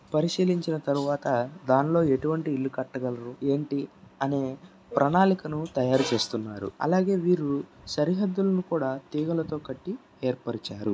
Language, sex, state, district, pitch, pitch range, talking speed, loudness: Telugu, male, Andhra Pradesh, Krishna, 140 Hz, 130-165 Hz, 105 wpm, -27 LUFS